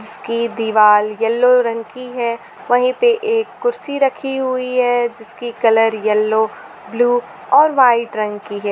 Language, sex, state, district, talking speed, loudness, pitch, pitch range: Hindi, female, Jharkhand, Garhwa, 150 wpm, -16 LUFS, 240 Hz, 220-255 Hz